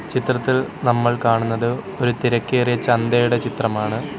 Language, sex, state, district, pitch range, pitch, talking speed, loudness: Malayalam, male, Kerala, Kollam, 115-125 Hz, 120 Hz, 100 wpm, -20 LUFS